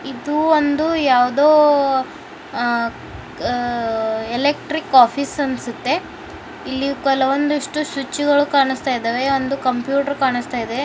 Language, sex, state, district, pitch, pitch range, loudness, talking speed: Kannada, male, Karnataka, Bijapur, 275 Hz, 245-290 Hz, -18 LUFS, 95 wpm